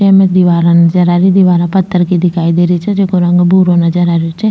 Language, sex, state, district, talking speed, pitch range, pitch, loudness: Rajasthani, female, Rajasthan, Nagaur, 255 wpm, 170-185 Hz, 175 Hz, -10 LUFS